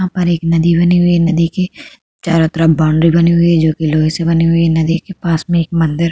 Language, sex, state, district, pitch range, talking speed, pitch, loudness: Hindi, female, Uttar Pradesh, Hamirpur, 165-170 Hz, 275 wpm, 165 Hz, -13 LUFS